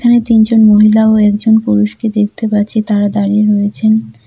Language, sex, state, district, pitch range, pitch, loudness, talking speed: Bengali, female, West Bengal, Cooch Behar, 210-220 Hz, 215 Hz, -11 LUFS, 155 wpm